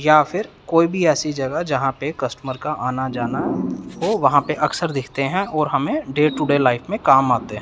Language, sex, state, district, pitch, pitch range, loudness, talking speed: Hindi, male, Punjab, Pathankot, 145 Hz, 130-160 Hz, -20 LUFS, 210 wpm